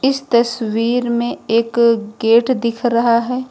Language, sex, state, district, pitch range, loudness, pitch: Hindi, female, Uttar Pradesh, Lucknow, 230-245 Hz, -16 LUFS, 235 Hz